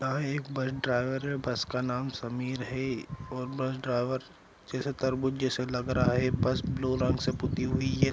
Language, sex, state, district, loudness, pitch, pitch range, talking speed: Hindi, male, Andhra Pradesh, Anantapur, -31 LUFS, 130 Hz, 125-130 Hz, 200 wpm